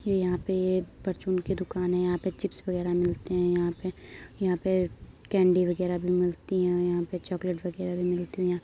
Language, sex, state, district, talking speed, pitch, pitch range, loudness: Hindi, female, Uttar Pradesh, Gorakhpur, 215 wpm, 180 Hz, 180-185 Hz, -28 LUFS